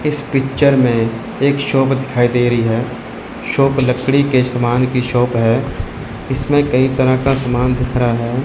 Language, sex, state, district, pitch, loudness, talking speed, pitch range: Hindi, male, Chandigarh, Chandigarh, 125 Hz, -15 LUFS, 170 wpm, 120-135 Hz